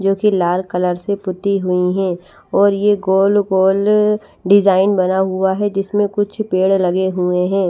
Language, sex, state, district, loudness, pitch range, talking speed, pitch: Hindi, female, Chandigarh, Chandigarh, -16 LUFS, 185-200 Hz, 180 wpm, 195 Hz